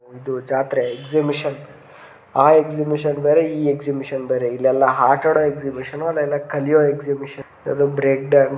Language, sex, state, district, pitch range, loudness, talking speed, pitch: Kannada, male, Karnataka, Gulbarga, 135-150 Hz, -19 LUFS, 125 wpm, 140 Hz